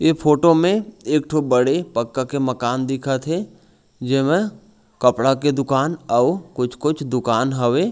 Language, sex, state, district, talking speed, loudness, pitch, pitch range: Chhattisgarhi, male, Chhattisgarh, Raigarh, 150 wpm, -19 LUFS, 135 Hz, 125-160 Hz